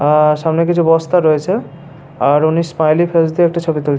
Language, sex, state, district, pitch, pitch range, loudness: Bengali, male, West Bengal, Paschim Medinipur, 160 Hz, 150-170 Hz, -14 LUFS